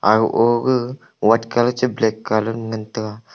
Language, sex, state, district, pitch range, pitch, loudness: Wancho, male, Arunachal Pradesh, Longding, 110-120 Hz, 115 Hz, -19 LUFS